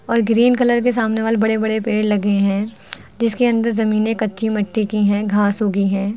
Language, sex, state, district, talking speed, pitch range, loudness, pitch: Hindi, female, Uttar Pradesh, Lucknow, 205 wpm, 205-230 Hz, -17 LUFS, 220 Hz